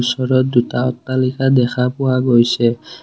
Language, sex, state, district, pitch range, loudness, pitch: Assamese, male, Assam, Kamrup Metropolitan, 120-130 Hz, -16 LUFS, 125 Hz